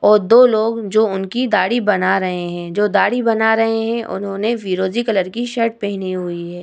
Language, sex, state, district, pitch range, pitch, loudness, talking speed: Hindi, female, Bihar, Vaishali, 190-230 Hz, 210 Hz, -17 LUFS, 200 wpm